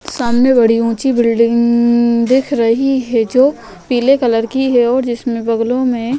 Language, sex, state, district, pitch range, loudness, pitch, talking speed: Hindi, female, Uttar Pradesh, Jyotiba Phule Nagar, 230-260 Hz, -13 LUFS, 240 Hz, 165 wpm